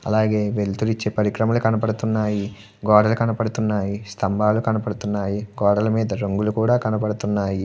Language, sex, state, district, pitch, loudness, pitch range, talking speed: Telugu, male, Andhra Pradesh, Guntur, 105 Hz, -21 LUFS, 105-110 Hz, 85 wpm